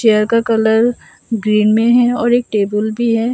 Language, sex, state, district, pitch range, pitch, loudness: Hindi, female, Assam, Sonitpur, 215-235 Hz, 225 Hz, -14 LUFS